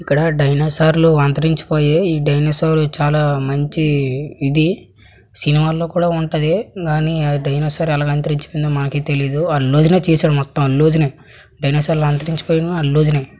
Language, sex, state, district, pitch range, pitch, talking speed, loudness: Telugu, male, Andhra Pradesh, Srikakulam, 145-160 Hz, 150 Hz, 155 wpm, -16 LUFS